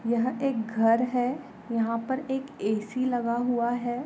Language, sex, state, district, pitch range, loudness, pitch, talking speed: Hindi, female, Goa, North and South Goa, 230-255 Hz, -27 LUFS, 240 Hz, 175 wpm